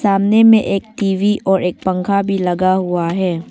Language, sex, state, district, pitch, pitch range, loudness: Hindi, female, Arunachal Pradesh, Longding, 190 Hz, 180-200 Hz, -15 LUFS